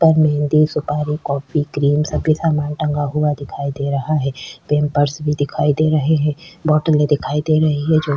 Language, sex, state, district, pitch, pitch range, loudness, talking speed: Hindi, female, Chhattisgarh, Sukma, 150 Hz, 145-155 Hz, -18 LUFS, 190 wpm